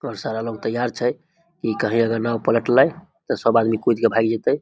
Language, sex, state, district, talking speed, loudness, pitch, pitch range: Maithili, male, Bihar, Samastipur, 235 wpm, -21 LUFS, 115 Hz, 115-120 Hz